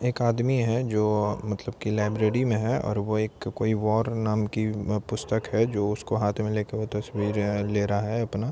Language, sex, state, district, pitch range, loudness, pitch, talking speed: Hindi, male, Bihar, Supaul, 105-115 Hz, -26 LUFS, 110 Hz, 210 wpm